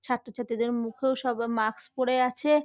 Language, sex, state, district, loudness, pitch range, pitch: Bengali, female, West Bengal, North 24 Parganas, -28 LUFS, 230-255 Hz, 245 Hz